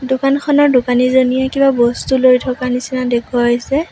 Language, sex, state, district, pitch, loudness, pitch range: Assamese, female, Assam, Sonitpur, 255 Hz, -14 LUFS, 250-270 Hz